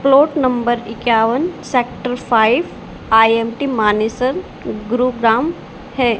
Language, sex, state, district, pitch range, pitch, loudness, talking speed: Hindi, female, Haryana, Charkhi Dadri, 225-255 Hz, 240 Hz, -16 LUFS, 85 wpm